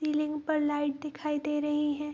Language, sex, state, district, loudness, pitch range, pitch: Hindi, female, Bihar, Araria, -30 LUFS, 295-300 Hz, 295 Hz